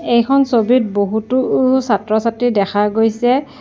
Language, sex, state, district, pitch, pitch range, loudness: Assamese, female, Assam, Sonitpur, 235 Hz, 215-255 Hz, -15 LUFS